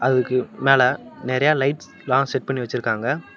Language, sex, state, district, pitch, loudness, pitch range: Tamil, male, Tamil Nadu, Namakkal, 130 Hz, -21 LUFS, 125-140 Hz